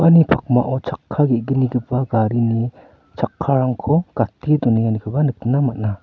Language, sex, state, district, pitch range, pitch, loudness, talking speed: Garo, male, Meghalaya, North Garo Hills, 115-145 Hz, 125 Hz, -19 LUFS, 90 wpm